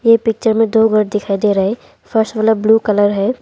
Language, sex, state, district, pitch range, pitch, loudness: Hindi, female, Arunachal Pradesh, Longding, 205-225 Hz, 220 Hz, -14 LUFS